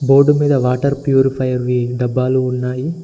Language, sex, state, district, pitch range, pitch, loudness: Telugu, male, Telangana, Mahabubabad, 125-140 Hz, 130 Hz, -16 LUFS